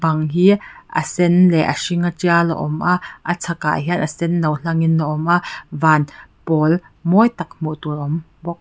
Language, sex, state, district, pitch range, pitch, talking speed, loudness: Mizo, female, Mizoram, Aizawl, 155-175 Hz, 165 Hz, 200 wpm, -18 LUFS